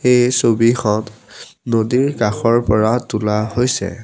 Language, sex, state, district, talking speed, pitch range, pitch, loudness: Assamese, male, Assam, Sonitpur, 105 wpm, 110-125 Hz, 115 Hz, -16 LUFS